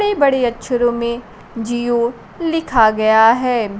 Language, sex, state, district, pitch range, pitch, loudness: Hindi, female, Bihar, Kaimur, 225-255 Hz, 240 Hz, -16 LUFS